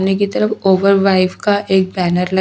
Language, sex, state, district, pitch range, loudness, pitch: Hindi, female, Haryana, Charkhi Dadri, 185-200 Hz, -14 LUFS, 190 Hz